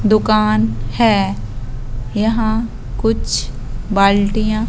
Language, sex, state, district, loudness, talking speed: Hindi, female, Madhya Pradesh, Bhopal, -16 LUFS, 65 wpm